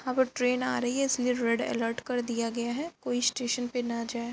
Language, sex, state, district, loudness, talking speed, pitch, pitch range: Hindi, female, Bihar, Lakhisarai, -29 LUFS, 220 wpm, 245 Hz, 235-255 Hz